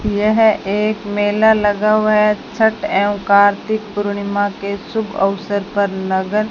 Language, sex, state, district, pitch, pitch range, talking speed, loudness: Hindi, female, Rajasthan, Bikaner, 205 Hz, 200-215 Hz, 150 wpm, -16 LUFS